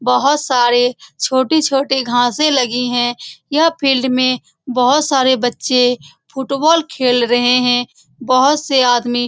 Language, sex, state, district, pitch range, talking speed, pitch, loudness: Hindi, female, Bihar, Saran, 245-275 Hz, 135 wpm, 255 Hz, -14 LUFS